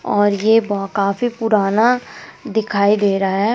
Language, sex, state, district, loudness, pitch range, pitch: Hindi, female, Delhi, New Delhi, -17 LUFS, 200-225 Hz, 205 Hz